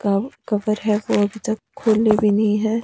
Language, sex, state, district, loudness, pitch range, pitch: Hindi, male, Himachal Pradesh, Shimla, -20 LUFS, 210-220 Hz, 215 Hz